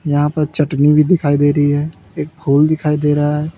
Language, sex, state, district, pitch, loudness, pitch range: Hindi, male, Uttar Pradesh, Lalitpur, 150 Hz, -14 LUFS, 145-150 Hz